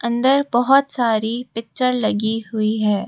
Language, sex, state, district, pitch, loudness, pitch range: Hindi, female, Rajasthan, Jaipur, 230 Hz, -19 LUFS, 220-250 Hz